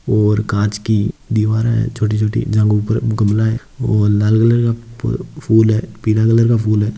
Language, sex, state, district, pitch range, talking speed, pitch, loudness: Hindi, male, Rajasthan, Nagaur, 105-115 Hz, 180 wpm, 110 Hz, -16 LUFS